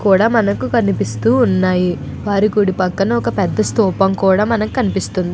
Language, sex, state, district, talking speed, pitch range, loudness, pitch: Telugu, female, Andhra Pradesh, Anantapur, 125 wpm, 185-215 Hz, -15 LUFS, 195 Hz